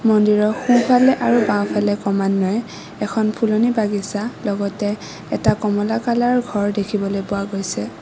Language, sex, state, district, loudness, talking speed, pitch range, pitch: Assamese, female, Assam, Kamrup Metropolitan, -19 LUFS, 120 wpm, 200-230 Hz, 210 Hz